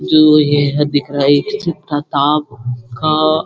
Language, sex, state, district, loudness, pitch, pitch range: Hindi, male, Uttarakhand, Uttarkashi, -14 LUFS, 145 Hz, 140-155 Hz